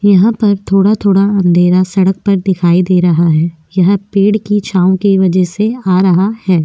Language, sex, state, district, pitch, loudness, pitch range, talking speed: Hindi, female, Maharashtra, Aurangabad, 190 Hz, -11 LUFS, 180-200 Hz, 190 wpm